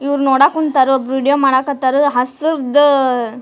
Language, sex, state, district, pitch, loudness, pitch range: Kannada, female, Karnataka, Dharwad, 275 Hz, -14 LUFS, 260-285 Hz